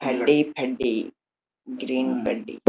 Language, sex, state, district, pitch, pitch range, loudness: Telugu, male, Andhra Pradesh, Guntur, 130 Hz, 130-145 Hz, -24 LUFS